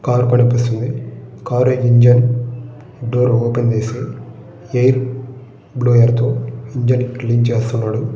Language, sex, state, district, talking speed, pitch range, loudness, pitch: Telugu, male, Andhra Pradesh, Srikakulam, 120 wpm, 120-125 Hz, -16 LUFS, 120 Hz